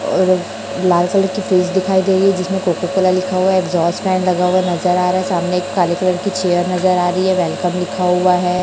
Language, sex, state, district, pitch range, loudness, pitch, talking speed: Hindi, male, Chhattisgarh, Raipur, 180-185 Hz, -16 LUFS, 185 Hz, 265 wpm